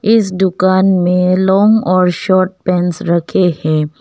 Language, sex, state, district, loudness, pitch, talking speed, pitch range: Hindi, female, Arunachal Pradesh, Longding, -13 LUFS, 185 Hz, 135 wpm, 175-190 Hz